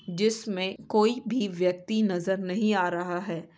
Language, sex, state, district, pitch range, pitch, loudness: Hindi, female, Bihar, Saran, 180-215 Hz, 190 Hz, -27 LUFS